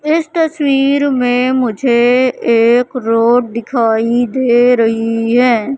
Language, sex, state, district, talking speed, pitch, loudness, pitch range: Hindi, female, Madhya Pradesh, Katni, 105 wpm, 245 Hz, -12 LUFS, 230-265 Hz